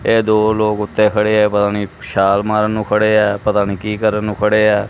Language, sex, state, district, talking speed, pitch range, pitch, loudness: Punjabi, male, Punjab, Kapurthala, 245 wpm, 105-110 Hz, 105 Hz, -15 LUFS